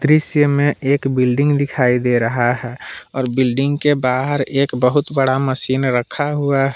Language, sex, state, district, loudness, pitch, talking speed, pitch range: Hindi, male, Jharkhand, Palamu, -17 LUFS, 135 Hz, 170 wpm, 125-145 Hz